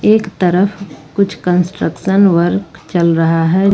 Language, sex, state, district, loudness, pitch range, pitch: Hindi, female, Jharkhand, Ranchi, -14 LUFS, 170-200 Hz, 180 Hz